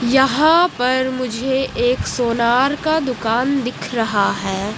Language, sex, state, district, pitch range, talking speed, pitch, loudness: Hindi, female, Odisha, Malkangiri, 235-270 Hz, 125 wpm, 255 Hz, -17 LUFS